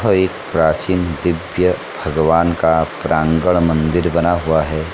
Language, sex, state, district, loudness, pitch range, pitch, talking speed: Hindi, male, Uttar Pradesh, Etah, -16 LUFS, 80-90 Hz, 85 Hz, 145 wpm